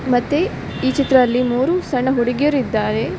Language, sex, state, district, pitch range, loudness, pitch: Kannada, female, Karnataka, Dakshina Kannada, 245-270 Hz, -18 LUFS, 255 Hz